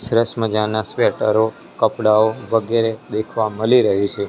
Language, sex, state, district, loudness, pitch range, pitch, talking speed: Gujarati, male, Gujarat, Gandhinagar, -18 LUFS, 110-115 Hz, 110 Hz, 125 wpm